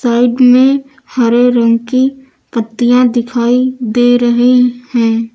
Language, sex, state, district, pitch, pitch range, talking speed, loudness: Hindi, female, Uttar Pradesh, Lucknow, 245 Hz, 235-255 Hz, 110 wpm, -11 LUFS